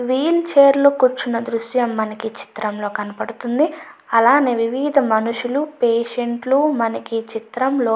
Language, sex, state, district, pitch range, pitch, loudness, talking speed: Telugu, female, Andhra Pradesh, Chittoor, 230-275 Hz, 240 Hz, -18 LUFS, 150 wpm